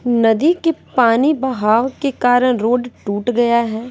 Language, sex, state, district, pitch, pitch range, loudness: Hindi, female, Bihar, West Champaran, 245 Hz, 230-265 Hz, -16 LUFS